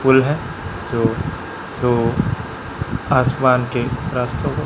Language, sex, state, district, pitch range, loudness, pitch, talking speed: Hindi, male, Chhattisgarh, Raipur, 125-135 Hz, -20 LUFS, 130 Hz, 105 wpm